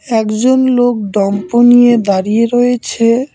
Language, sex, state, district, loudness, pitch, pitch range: Bengali, male, West Bengal, Cooch Behar, -11 LUFS, 235 Hz, 215-245 Hz